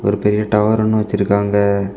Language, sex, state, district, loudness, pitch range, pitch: Tamil, male, Tamil Nadu, Kanyakumari, -16 LUFS, 100-105 Hz, 105 Hz